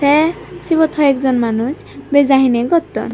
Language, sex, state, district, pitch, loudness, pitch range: Chakma, female, Tripura, Dhalai, 285 Hz, -14 LUFS, 260-310 Hz